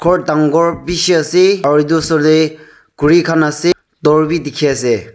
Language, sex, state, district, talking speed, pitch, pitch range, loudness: Nagamese, male, Nagaland, Dimapur, 165 wpm, 160 Hz, 150-170 Hz, -13 LUFS